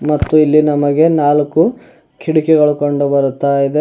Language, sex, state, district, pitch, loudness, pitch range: Kannada, male, Karnataka, Bidar, 150 Hz, -13 LUFS, 145-155 Hz